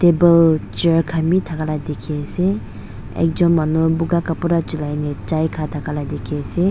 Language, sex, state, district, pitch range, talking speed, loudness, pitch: Nagamese, female, Nagaland, Dimapur, 150-170 Hz, 170 wpm, -19 LUFS, 160 Hz